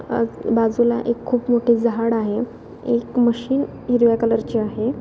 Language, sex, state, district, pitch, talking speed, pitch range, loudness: Marathi, female, Maharashtra, Sindhudurg, 235 Hz, 130 wpm, 230-240 Hz, -20 LUFS